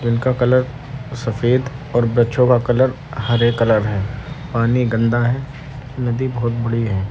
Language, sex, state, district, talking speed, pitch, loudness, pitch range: Hindi, male, Uttar Pradesh, Deoria, 145 wpm, 120 Hz, -18 LUFS, 115-130 Hz